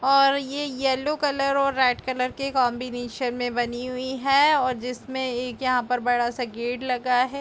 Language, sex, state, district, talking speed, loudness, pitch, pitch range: Hindi, female, Chhattisgarh, Bilaspur, 185 wpm, -24 LUFS, 255 Hz, 245-275 Hz